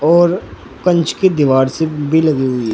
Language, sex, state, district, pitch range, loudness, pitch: Hindi, male, Uttar Pradesh, Saharanpur, 130-170 Hz, -14 LUFS, 155 Hz